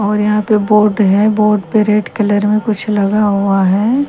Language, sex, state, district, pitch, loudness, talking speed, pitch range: Hindi, female, Haryana, Rohtak, 210 Hz, -13 LUFS, 205 wpm, 205-215 Hz